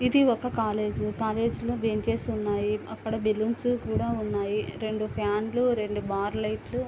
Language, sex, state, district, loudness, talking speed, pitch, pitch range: Telugu, female, Andhra Pradesh, Anantapur, -28 LUFS, 155 wpm, 215 Hz, 210-235 Hz